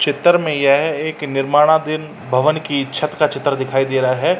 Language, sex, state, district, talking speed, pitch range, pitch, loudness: Hindi, male, Uttar Pradesh, Jalaun, 190 wpm, 135-155 Hz, 145 Hz, -17 LUFS